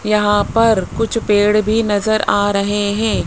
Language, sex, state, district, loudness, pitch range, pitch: Hindi, male, Rajasthan, Jaipur, -15 LUFS, 205-220 Hz, 210 Hz